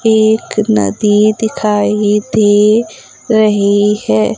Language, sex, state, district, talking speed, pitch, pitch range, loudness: Hindi, female, Madhya Pradesh, Umaria, 80 wpm, 210 Hz, 205-220 Hz, -12 LUFS